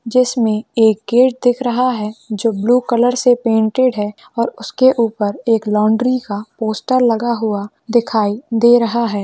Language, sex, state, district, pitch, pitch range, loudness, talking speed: Hindi, female, Rajasthan, Churu, 230 Hz, 215-245 Hz, -16 LUFS, 155 wpm